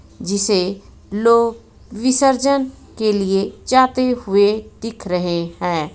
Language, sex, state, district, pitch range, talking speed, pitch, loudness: Hindi, female, Jharkhand, Ranchi, 195-250 Hz, 100 wpm, 215 Hz, -17 LUFS